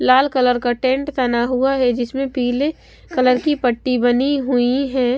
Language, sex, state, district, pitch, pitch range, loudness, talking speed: Hindi, female, Bihar, West Champaran, 255 Hz, 245-270 Hz, -18 LUFS, 175 wpm